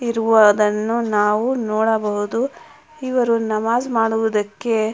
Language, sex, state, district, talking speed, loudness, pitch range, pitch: Kannada, female, Karnataka, Mysore, 75 wpm, -18 LUFS, 215-235 Hz, 225 Hz